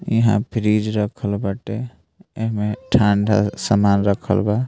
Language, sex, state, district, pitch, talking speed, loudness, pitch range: Bhojpuri, male, Bihar, Muzaffarpur, 105 Hz, 140 wpm, -19 LUFS, 100-115 Hz